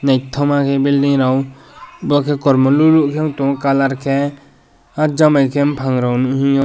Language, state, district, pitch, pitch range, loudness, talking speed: Kokborok, Tripura, West Tripura, 140 Hz, 135-145 Hz, -15 LUFS, 125 wpm